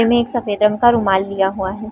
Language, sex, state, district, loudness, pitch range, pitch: Hindi, female, Chhattisgarh, Raigarh, -16 LUFS, 195-235 Hz, 210 Hz